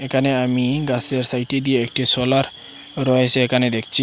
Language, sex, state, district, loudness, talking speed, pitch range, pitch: Bengali, male, Assam, Hailakandi, -17 LUFS, 150 wpm, 125-135 Hz, 130 Hz